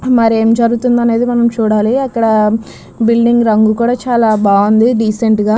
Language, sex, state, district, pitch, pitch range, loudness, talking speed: Telugu, female, Andhra Pradesh, Krishna, 230 Hz, 220-240 Hz, -12 LUFS, 130 wpm